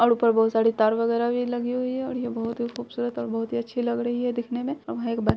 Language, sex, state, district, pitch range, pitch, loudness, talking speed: Hindi, female, Bihar, Purnia, 225-245 Hz, 235 Hz, -25 LUFS, 280 wpm